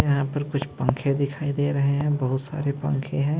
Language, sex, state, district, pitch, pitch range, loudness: Hindi, male, Maharashtra, Mumbai Suburban, 140 Hz, 140-145 Hz, -25 LUFS